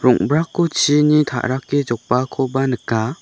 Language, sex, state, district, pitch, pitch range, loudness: Garo, male, Meghalaya, West Garo Hills, 135 Hz, 125-150 Hz, -18 LUFS